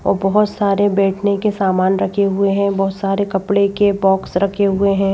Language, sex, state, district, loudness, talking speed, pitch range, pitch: Hindi, female, Madhya Pradesh, Bhopal, -16 LUFS, 200 wpm, 195-200 Hz, 200 Hz